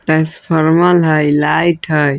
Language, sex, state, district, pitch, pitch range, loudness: Hindi, male, Bihar, Vaishali, 155 Hz, 150-170 Hz, -13 LUFS